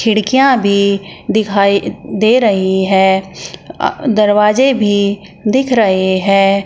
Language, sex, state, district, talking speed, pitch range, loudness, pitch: Hindi, female, Uttar Pradesh, Shamli, 100 wpm, 195-220 Hz, -12 LUFS, 200 Hz